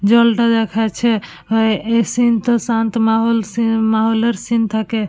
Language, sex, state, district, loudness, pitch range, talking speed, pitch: Bengali, female, West Bengal, Purulia, -16 LUFS, 220-230 Hz, 140 wpm, 225 Hz